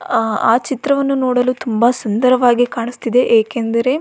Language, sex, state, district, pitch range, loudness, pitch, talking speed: Kannada, female, Karnataka, Belgaum, 230-255 Hz, -15 LUFS, 245 Hz, 105 wpm